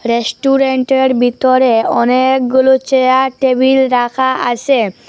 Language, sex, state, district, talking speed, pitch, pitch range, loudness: Bengali, female, Assam, Hailakandi, 80 wpm, 260 Hz, 245-265 Hz, -12 LUFS